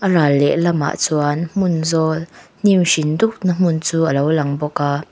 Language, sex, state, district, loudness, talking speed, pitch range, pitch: Mizo, female, Mizoram, Aizawl, -17 LUFS, 200 wpm, 150-175 Hz, 160 Hz